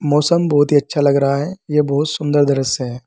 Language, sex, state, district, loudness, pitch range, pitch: Hindi, male, Uttar Pradesh, Saharanpur, -16 LUFS, 140-150 Hz, 145 Hz